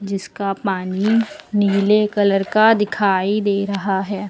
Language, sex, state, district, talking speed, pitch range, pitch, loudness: Hindi, female, Uttar Pradesh, Lucknow, 125 wpm, 195-210 Hz, 200 Hz, -18 LUFS